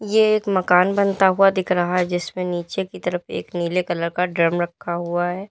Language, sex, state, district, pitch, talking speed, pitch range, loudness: Hindi, female, Uttar Pradesh, Lalitpur, 180 Hz, 215 wpm, 175-190 Hz, -20 LUFS